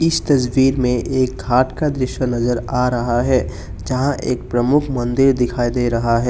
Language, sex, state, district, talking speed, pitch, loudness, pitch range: Hindi, male, Assam, Kamrup Metropolitan, 180 wpm, 125 Hz, -18 LUFS, 120-130 Hz